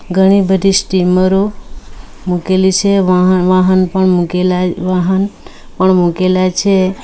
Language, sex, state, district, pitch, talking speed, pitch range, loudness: Gujarati, female, Gujarat, Valsad, 185 Hz, 110 wpm, 180-190 Hz, -12 LUFS